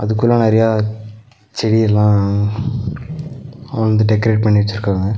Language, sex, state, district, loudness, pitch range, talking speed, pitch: Tamil, male, Tamil Nadu, Nilgiris, -15 LUFS, 105-120 Hz, 95 wpm, 110 Hz